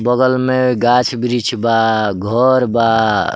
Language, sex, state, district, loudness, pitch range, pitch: Bhojpuri, male, Bihar, Muzaffarpur, -14 LUFS, 115-125 Hz, 120 Hz